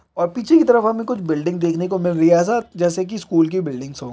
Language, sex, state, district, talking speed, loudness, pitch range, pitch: Hindi, male, Bihar, East Champaran, 260 wpm, -18 LUFS, 165-225 Hz, 175 Hz